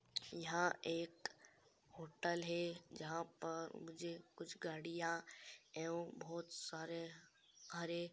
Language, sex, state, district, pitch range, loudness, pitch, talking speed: Hindi, male, Andhra Pradesh, Krishna, 165-170 Hz, -46 LUFS, 170 Hz, 105 wpm